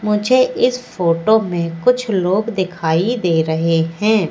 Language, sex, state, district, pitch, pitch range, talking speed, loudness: Hindi, female, Madhya Pradesh, Katni, 190 Hz, 165-220 Hz, 140 wpm, -16 LUFS